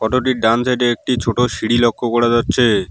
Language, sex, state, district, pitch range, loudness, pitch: Bengali, male, West Bengal, Alipurduar, 115-125 Hz, -16 LUFS, 120 Hz